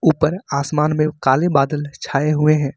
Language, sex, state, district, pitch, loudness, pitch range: Hindi, male, Jharkhand, Ranchi, 150 Hz, -18 LUFS, 140-155 Hz